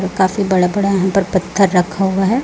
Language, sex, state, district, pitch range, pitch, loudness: Hindi, male, Chhattisgarh, Raipur, 185-195 Hz, 190 Hz, -15 LUFS